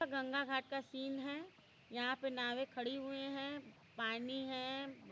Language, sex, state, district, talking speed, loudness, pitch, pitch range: Hindi, female, Uttar Pradesh, Varanasi, 165 wpm, -42 LUFS, 270 Hz, 255-275 Hz